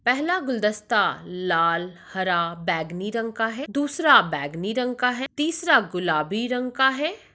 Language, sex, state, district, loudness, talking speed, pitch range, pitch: Hindi, female, Uttar Pradesh, Etah, -23 LUFS, 140 wpm, 180-265 Hz, 230 Hz